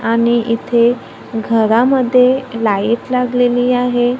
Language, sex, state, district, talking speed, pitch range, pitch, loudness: Marathi, female, Maharashtra, Gondia, 85 wpm, 230-250 Hz, 240 Hz, -14 LUFS